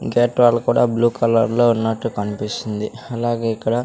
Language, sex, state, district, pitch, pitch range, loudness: Telugu, male, Andhra Pradesh, Sri Satya Sai, 115 Hz, 110-120 Hz, -19 LUFS